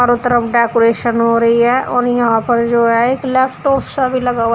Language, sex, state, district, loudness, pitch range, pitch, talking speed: Hindi, female, Uttar Pradesh, Shamli, -14 LUFS, 230-250 Hz, 240 Hz, 225 wpm